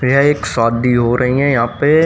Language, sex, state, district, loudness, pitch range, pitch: Hindi, male, Haryana, Rohtak, -14 LUFS, 120-140 Hz, 125 Hz